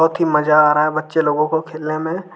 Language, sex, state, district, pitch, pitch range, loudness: Hindi, male, Jharkhand, Deoghar, 155 Hz, 150-160 Hz, -17 LUFS